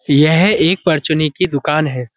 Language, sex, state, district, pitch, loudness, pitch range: Hindi, male, Uttar Pradesh, Budaun, 155 Hz, -14 LUFS, 145-170 Hz